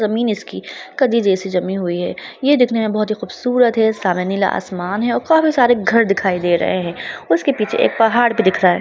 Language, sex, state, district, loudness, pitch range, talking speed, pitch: Hindi, female, Bihar, Lakhisarai, -16 LUFS, 190-240 Hz, 230 wpm, 215 Hz